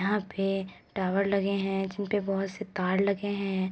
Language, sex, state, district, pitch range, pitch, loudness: Hindi, female, Uttar Pradesh, Etah, 190-200 Hz, 195 Hz, -29 LUFS